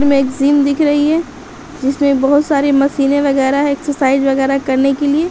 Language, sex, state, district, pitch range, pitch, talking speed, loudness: Hindi, female, Jharkhand, Sahebganj, 275-290 Hz, 280 Hz, 205 wpm, -14 LUFS